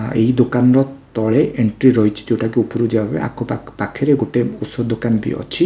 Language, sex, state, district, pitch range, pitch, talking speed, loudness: Odia, male, Odisha, Khordha, 110-125 Hz, 115 Hz, 180 wpm, -17 LUFS